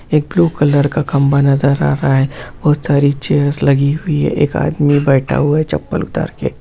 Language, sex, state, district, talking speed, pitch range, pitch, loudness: Hindi, male, Bihar, Jamui, 210 wpm, 140-150 Hz, 140 Hz, -14 LUFS